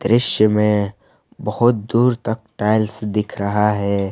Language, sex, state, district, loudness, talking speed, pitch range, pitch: Hindi, male, Jharkhand, Palamu, -18 LUFS, 130 wpm, 105-115 Hz, 105 Hz